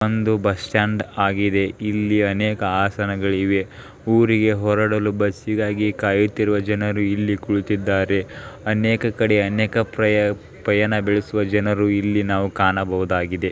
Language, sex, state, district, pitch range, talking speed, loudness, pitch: Kannada, male, Karnataka, Belgaum, 100-110 Hz, 105 wpm, -20 LUFS, 105 Hz